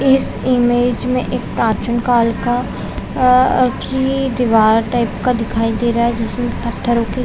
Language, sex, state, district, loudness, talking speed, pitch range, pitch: Hindi, female, Chhattisgarh, Raigarh, -16 LUFS, 155 wpm, 235-250 Hz, 240 Hz